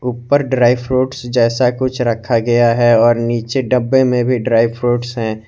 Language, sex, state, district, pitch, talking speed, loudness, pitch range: Hindi, male, Jharkhand, Garhwa, 120 Hz, 175 wpm, -14 LUFS, 115-125 Hz